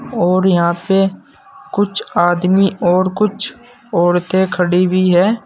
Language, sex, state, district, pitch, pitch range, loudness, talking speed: Hindi, male, Uttar Pradesh, Saharanpur, 185 Hz, 180-210 Hz, -15 LUFS, 120 wpm